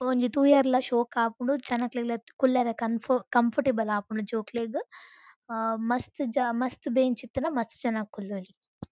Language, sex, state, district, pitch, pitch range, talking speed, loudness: Tulu, female, Karnataka, Dakshina Kannada, 240 Hz, 230-260 Hz, 130 wpm, -28 LUFS